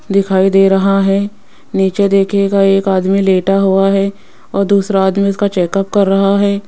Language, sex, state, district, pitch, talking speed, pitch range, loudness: Hindi, female, Rajasthan, Jaipur, 195 Hz, 170 wpm, 195-200 Hz, -12 LUFS